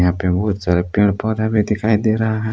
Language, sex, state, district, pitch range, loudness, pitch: Hindi, male, Jharkhand, Palamu, 90-110 Hz, -18 LUFS, 105 Hz